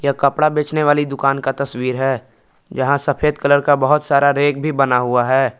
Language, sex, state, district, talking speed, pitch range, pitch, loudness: Hindi, male, Jharkhand, Palamu, 205 wpm, 135-145 Hz, 140 Hz, -16 LUFS